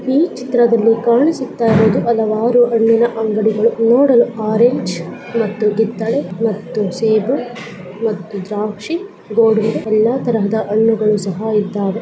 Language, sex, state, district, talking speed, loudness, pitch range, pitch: Kannada, female, Karnataka, Chamarajanagar, 75 wpm, -15 LUFS, 215-235 Hz, 225 Hz